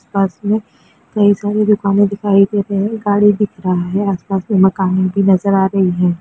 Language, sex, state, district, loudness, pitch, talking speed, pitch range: Hindi, female, Chhattisgarh, Raigarh, -15 LUFS, 200 Hz, 205 wpm, 190-205 Hz